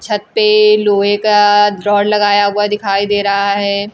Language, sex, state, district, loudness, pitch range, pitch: Hindi, female, Bihar, Kaimur, -12 LUFS, 200-210 Hz, 205 Hz